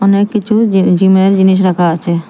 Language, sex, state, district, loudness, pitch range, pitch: Bengali, female, Assam, Hailakandi, -11 LUFS, 180-200 Hz, 190 Hz